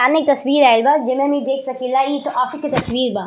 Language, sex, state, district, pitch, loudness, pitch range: Bhojpuri, female, Uttar Pradesh, Ghazipur, 270 Hz, -17 LUFS, 255-285 Hz